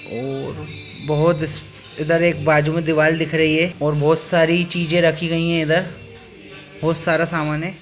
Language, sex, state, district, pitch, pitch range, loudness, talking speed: Hindi, male, Bihar, Jamui, 160 Hz, 150-170 Hz, -18 LUFS, 175 wpm